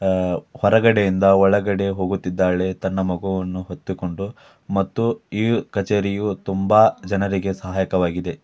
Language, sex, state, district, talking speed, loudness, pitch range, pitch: Kannada, male, Karnataka, Dharwad, 90 wpm, -20 LUFS, 95-100 Hz, 95 Hz